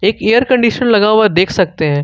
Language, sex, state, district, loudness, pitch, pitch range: Hindi, male, Jharkhand, Ranchi, -12 LUFS, 215 Hz, 185-230 Hz